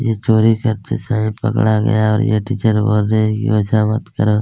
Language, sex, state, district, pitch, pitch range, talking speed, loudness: Hindi, male, Chhattisgarh, Kabirdham, 110 Hz, 105-115 Hz, 215 wpm, -16 LUFS